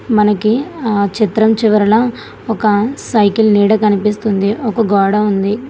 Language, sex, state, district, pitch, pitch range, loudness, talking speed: Telugu, female, Telangana, Hyderabad, 215 Hz, 205-220 Hz, -13 LUFS, 115 wpm